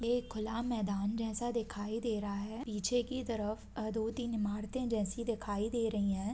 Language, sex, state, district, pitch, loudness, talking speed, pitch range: Hindi, male, Bihar, Gaya, 220 Hz, -37 LUFS, 180 wpm, 210-235 Hz